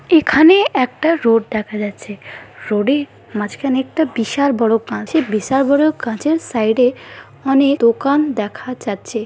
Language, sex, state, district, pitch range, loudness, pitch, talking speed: Bengali, female, West Bengal, Dakshin Dinajpur, 220-285 Hz, -16 LUFS, 255 Hz, 140 wpm